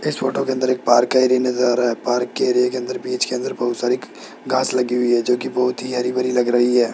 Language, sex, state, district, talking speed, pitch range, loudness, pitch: Hindi, male, Rajasthan, Jaipur, 285 wpm, 125-130 Hz, -19 LUFS, 125 Hz